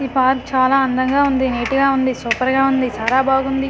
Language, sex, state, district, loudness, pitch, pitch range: Telugu, female, Andhra Pradesh, Manyam, -16 LUFS, 265 Hz, 255-270 Hz